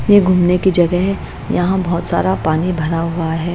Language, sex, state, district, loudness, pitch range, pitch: Hindi, female, Bihar, Patna, -16 LUFS, 165-185 Hz, 175 Hz